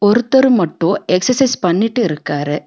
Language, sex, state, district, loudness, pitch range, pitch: Tamil, female, Tamil Nadu, Nilgiris, -14 LUFS, 165-245 Hz, 200 Hz